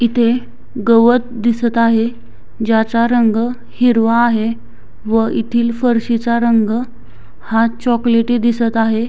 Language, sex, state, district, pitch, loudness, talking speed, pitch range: Marathi, female, Maharashtra, Sindhudurg, 230 Hz, -15 LUFS, 105 wpm, 225-235 Hz